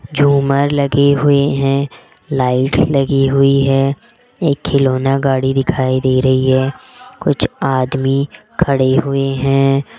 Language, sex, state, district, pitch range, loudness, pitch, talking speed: Hindi, female, Rajasthan, Jaipur, 130-140 Hz, -14 LUFS, 135 Hz, 120 wpm